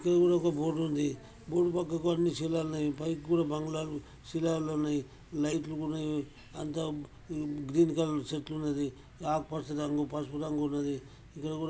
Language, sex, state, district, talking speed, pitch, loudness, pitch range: Telugu, male, Telangana, Karimnagar, 155 wpm, 155 Hz, -33 LUFS, 145-160 Hz